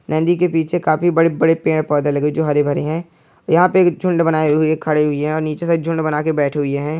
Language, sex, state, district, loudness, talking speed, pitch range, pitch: Angika, male, Bihar, Samastipur, -17 LUFS, 255 wpm, 150-165 Hz, 155 Hz